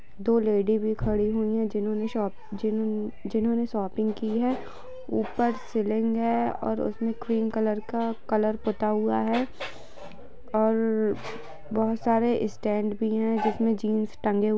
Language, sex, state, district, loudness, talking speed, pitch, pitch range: Hindi, female, Jharkhand, Jamtara, -27 LUFS, 130 wpm, 220 Hz, 215-225 Hz